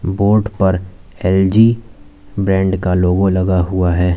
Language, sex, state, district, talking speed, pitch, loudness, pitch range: Hindi, male, Uttar Pradesh, Lalitpur, 130 wpm, 95 Hz, -15 LUFS, 90-100 Hz